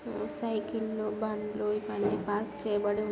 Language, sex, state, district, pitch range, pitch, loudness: Telugu, female, Andhra Pradesh, Guntur, 210-215 Hz, 210 Hz, -33 LUFS